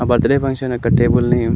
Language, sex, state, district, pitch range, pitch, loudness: Telugu, male, Andhra Pradesh, Anantapur, 120-130 Hz, 120 Hz, -16 LUFS